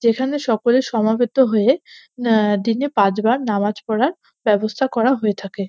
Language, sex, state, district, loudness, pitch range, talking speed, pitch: Bengali, female, West Bengal, North 24 Parganas, -18 LUFS, 210-260 Hz, 135 wpm, 230 Hz